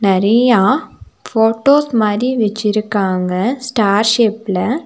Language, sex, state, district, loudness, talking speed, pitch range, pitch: Tamil, female, Tamil Nadu, Nilgiris, -14 LUFS, 85 wpm, 200-245 Hz, 220 Hz